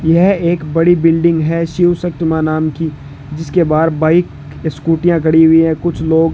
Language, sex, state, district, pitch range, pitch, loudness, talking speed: Hindi, male, Rajasthan, Bikaner, 160-170 Hz, 165 Hz, -13 LUFS, 190 wpm